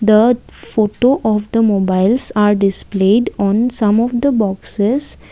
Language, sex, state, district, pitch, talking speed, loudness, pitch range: English, female, Assam, Kamrup Metropolitan, 215 Hz, 135 wpm, -14 LUFS, 200-235 Hz